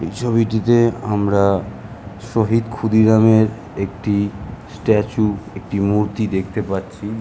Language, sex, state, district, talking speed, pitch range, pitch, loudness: Bengali, male, West Bengal, Kolkata, 100 wpm, 100-110 Hz, 105 Hz, -18 LUFS